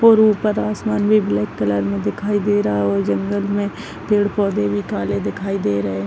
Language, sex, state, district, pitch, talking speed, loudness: Hindi, male, Chhattisgarh, Raigarh, 200 Hz, 195 wpm, -19 LUFS